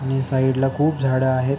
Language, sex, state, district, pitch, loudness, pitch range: Marathi, male, Maharashtra, Sindhudurg, 135 Hz, -20 LUFS, 130-135 Hz